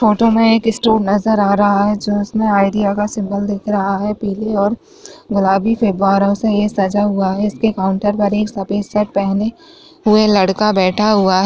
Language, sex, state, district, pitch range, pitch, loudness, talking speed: Chhattisgarhi, female, Chhattisgarh, Jashpur, 200-215 Hz, 205 Hz, -15 LUFS, 190 wpm